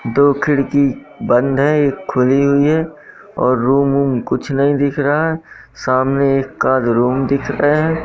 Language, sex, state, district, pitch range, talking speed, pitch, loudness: Hindi, male, Madhya Pradesh, Katni, 130-145 Hz, 165 wpm, 140 Hz, -15 LUFS